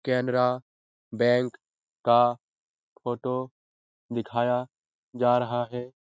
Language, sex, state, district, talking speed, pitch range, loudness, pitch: Hindi, male, Bihar, Jahanabad, 80 wpm, 120-125 Hz, -26 LUFS, 125 Hz